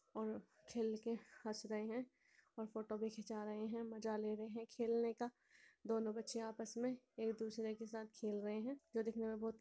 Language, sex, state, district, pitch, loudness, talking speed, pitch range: Hindi, male, Bihar, Purnia, 225 Hz, -46 LUFS, 210 wpm, 220-230 Hz